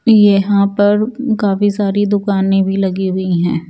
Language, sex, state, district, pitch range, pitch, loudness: Hindi, female, Chandigarh, Chandigarh, 195-205 Hz, 200 Hz, -14 LUFS